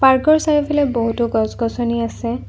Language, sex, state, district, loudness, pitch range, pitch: Assamese, female, Assam, Kamrup Metropolitan, -18 LUFS, 230-290 Hz, 235 Hz